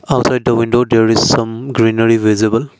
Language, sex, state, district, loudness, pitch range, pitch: English, male, Assam, Kamrup Metropolitan, -13 LUFS, 115-120 Hz, 115 Hz